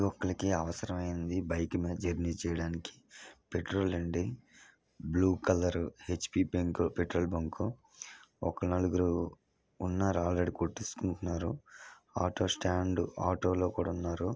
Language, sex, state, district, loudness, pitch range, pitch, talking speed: Telugu, male, Andhra Pradesh, Srikakulam, -34 LUFS, 85-95 Hz, 90 Hz, 105 wpm